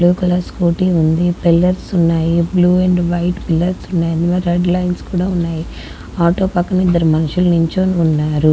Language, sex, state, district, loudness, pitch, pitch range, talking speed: Telugu, female, Andhra Pradesh, Guntur, -15 LUFS, 175 Hz, 170-180 Hz, 150 wpm